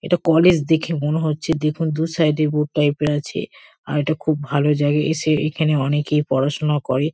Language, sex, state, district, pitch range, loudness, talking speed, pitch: Bengali, female, West Bengal, Kolkata, 150-160 Hz, -19 LUFS, 195 wpm, 150 Hz